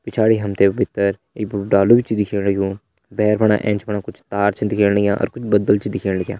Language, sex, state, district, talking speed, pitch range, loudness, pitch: Hindi, male, Uttarakhand, Uttarkashi, 245 wpm, 100-105 Hz, -18 LUFS, 100 Hz